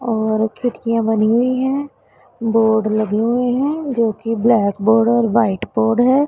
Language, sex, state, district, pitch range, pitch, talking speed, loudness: Hindi, female, Punjab, Pathankot, 220-245 Hz, 230 Hz, 160 wpm, -17 LUFS